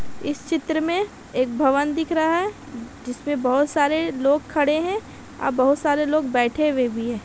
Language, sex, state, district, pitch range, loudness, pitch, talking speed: Hindi, female, Bihar, Gaya, 260-315 Hz, -22 LUFS, 290 Hz, 180 wpm